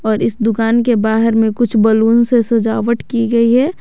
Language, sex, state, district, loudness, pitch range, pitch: Hindi, female, Jharkhand, Garhwa, -13 LUFS, 220-235 Hz, 230 Hz